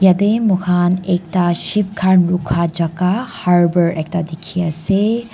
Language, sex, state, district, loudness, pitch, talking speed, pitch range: Nagamese, female, Nagaland, Dimapur, -16 LUFS, 180 Hz, 135 wpm, 170-195 Hz